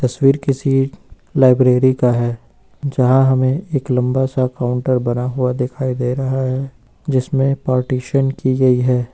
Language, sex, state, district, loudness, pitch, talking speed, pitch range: Hindi, male, Uttar Pradesh, Lucknow, -17 LUFS, 130 Hz, 145 wpm, 125-135 Hz